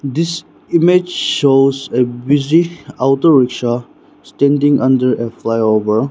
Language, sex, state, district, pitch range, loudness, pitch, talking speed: English, male, Nagaland, Dimapur, 125-155 Hz, -14 LUFS, 135 Hz, 110 wpm